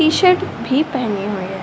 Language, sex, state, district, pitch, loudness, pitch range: Hindi, female, Uttar Pradesh, Ghazipur, 260 Hz, -18 LUFS, 200-315 Hz